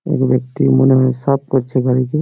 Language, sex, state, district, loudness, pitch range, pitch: Bengali, male, West Bengal, Malda, -15 LUFS, 125-135 Hz, 130 Hz